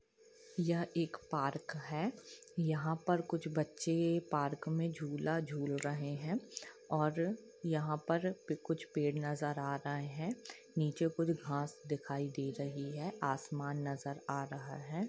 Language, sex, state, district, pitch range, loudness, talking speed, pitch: Hindi, female, Jharkhand, Jamtara, 145-170 Hz, -39 LUFS, 130 wpm, 155 Hz